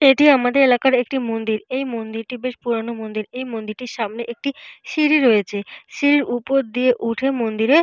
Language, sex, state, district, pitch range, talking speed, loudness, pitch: Bengali, female, Jharkhand, Jamtara, 225-270 Hz, 160 wpm, -20 LUFS, 245 Hz